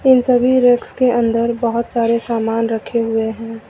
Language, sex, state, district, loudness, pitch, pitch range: Hindi, female, Uttar Pradesh, Lucknow, -16 LUFS, 235 Hz, 225-245 Hz